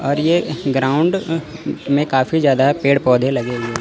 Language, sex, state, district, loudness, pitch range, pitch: Hindi, male, Chandigarh, Chandigarh, -17 LUFS, 130-160 Hz, 140 Hz